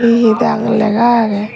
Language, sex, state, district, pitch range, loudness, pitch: Chakma, female, Tripura, West Tripura, 215-235 Hz, -12 LUFS, 225 Hz